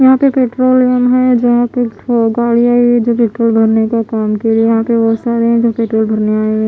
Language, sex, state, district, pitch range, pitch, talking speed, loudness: Hindi, female, Odisha, Khordha, 225-245 Hz, 235 Hz, 225 wpm, -12 LUFS